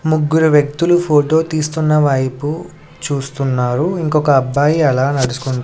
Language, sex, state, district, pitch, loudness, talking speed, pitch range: Telugu, male, Andhra Pradesh, Sri Satya Sai, 150 Hz, -15 LUFS, 105 wpm, 135-160 Hz